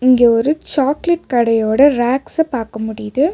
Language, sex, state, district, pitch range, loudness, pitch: Tamil, female, Tamil Nadu, Nilgiris, 230-290 Hz, -15 LUFS, 255 Hz